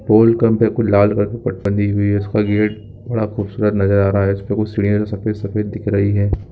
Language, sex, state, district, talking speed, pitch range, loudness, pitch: Hindi, male, Jharkhand, Sahebganj, 240 wpm, 100-110 Hz, -17 LUFS, 105 Hz